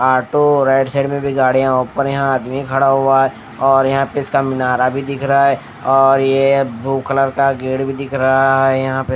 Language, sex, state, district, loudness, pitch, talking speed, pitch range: Hindi, male, Odisha, Nuapada, -15 LUFS, 135 Hz, 220 wpm, 130-135 Hz